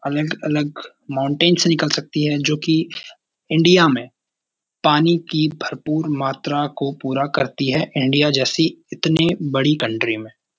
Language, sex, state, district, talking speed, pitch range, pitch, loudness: Hindi, male, Uttarakhand, Uttarkashi, 140 wpm, 140-160 Hz, 150 Hz, -19 LUFS